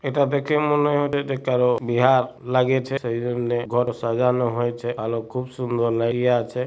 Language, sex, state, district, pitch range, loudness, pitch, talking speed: Bengali, male, West Bengal, Purulia, 120-130 Hz, -22 LUFS, 125 Hz, 160 wpm